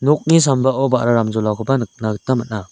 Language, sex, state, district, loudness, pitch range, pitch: Garo, male, Meghalaya, South Garo Hills, -17 LUFS, 110-135 Hz, 125 Hz